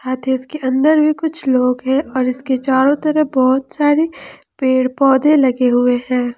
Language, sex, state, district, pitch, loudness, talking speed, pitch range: Hindi, female, Jharkhand, Ranchi, 265 Hz, -15 LUFS, 160 wpm, 255-295 Hz